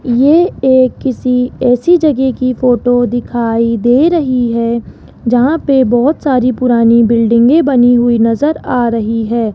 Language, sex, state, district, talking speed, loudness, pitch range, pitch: Hindi, female, Rajasthan, Jaipur, 145 wpm, -11 LUFS, 235-265 Hz, 245 Hz